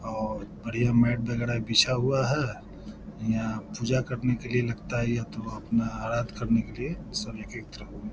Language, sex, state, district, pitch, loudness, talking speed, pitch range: Hindi, male, Bihar, Lakhisarai, 115 Hz, -28 LUFS, 175 wpm, 110-120 Hz